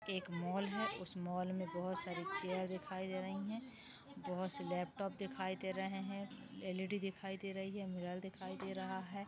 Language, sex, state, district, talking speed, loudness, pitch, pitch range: Hindi, female, Maharashtra, Dhule, 195 wpm, -44 LUFS, 190 Hz, 185-195 Hz